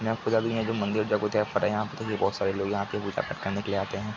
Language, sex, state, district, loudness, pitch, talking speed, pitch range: Hindi, male, Bihar, Araria, -28 LUFS, 105 Hz, 290 wpm, 100-110 Hz